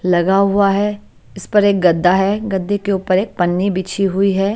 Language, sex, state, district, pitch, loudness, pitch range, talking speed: Hindi, female, Chandigarh, Chandigarh, 195 Hz, -16 LUFS, 185-200 Hz, 210 wpm